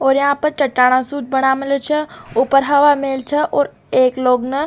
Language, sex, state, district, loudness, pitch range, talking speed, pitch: Rajasthani, female, Rajasthan, Nagaur, -16 LUFS, 265-285 Hz, 220 wpm, 275 Hz